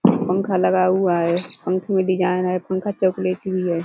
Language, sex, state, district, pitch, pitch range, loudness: Hindi, female, Uttar Pradesh, Budaun, 185 Hz, 180-190 Hz, -20 LUFS